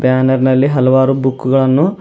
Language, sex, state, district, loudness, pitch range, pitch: Kannada, male, Karnataka, Bidar, -12 LUFS, 130-135 Hz, 130 Hz